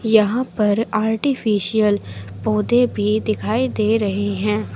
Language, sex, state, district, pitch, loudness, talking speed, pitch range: Hindi, female, Uttar Pradesh, Shamli, 215 Hz, -19 LUFS, 115 wpm, 205-225 Hz